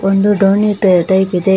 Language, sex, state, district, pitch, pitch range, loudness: Kannada, female, Karnataka, Koppal, 195 Hz, 190-200 Hz, -12 LUFS